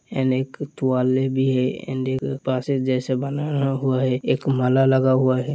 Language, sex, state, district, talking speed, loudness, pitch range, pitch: Hindi, male, Uttar Pradesh, Hamirpur, 175 wpm, -21 LUFS, 130-135 Hz, 130 Hz